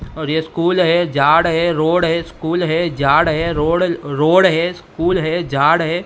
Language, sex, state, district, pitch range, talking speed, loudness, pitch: Hindi, male, Maharashtra, Mumbai Suburban, 160-175 Hz, 190 wpm, -16 LUFS, 165 Hz